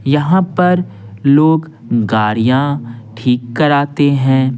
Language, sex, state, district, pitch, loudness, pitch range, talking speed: Hindi, male, Bihar, Patna, 135 Hz, -14 LUFS, 115-150 Hz, 90 wpm